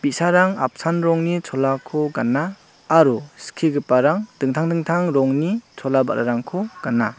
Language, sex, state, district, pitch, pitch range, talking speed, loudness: Garo, male, Meghalaya, South Garo Hills, 155 Hz, 135-175 Hz, 110 wpm, -20 LUFS